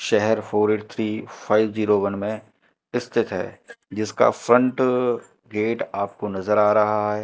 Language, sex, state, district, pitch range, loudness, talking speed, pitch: Hindi, male, Madhya Pradesh, Katni, 105-115 Hz, -22 LUFS, 150 wpm, 105 Hz